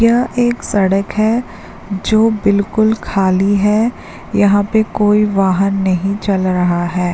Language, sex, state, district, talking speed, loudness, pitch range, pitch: Hindi, female, Jharkhand, Jamtara, 135 wpm, -14 LUFS, 195-220 Hz, 205 Hz